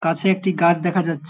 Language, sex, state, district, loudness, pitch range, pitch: Bengali, male, West Bengal, Paschim Medinipur, -19 LUFS, 165-185 Hz, 175 Hz